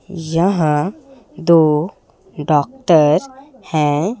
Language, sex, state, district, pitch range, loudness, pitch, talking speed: Hindi, female, Chhattisgarh, Raipur, 150-205 Hz, -16 LUFS, 170 Hz, 55 wpm